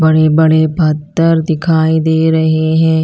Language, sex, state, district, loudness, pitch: Hindi, female, Chhattisgarh, Raipur, -11 LUFS, 160 Hz